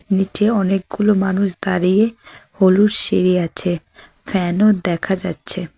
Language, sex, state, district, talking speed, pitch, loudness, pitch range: Bengali, female, West Bengal, Cooch Behar, 115 wpm, 190 Hz, -17 LUFS, 180-205 Hz